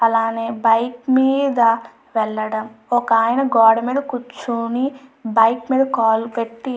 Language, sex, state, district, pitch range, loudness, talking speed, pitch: Telugu, female, Andhra Pradesh, Chittoor, 225-255 Hz, -18 LUFS, 115 wpm, 230 Hz